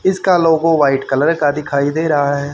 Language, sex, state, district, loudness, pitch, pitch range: Hindi, male, Haryana, Charkhi Dadri, -14 LUFS, 150 Hz, 140-165 Hz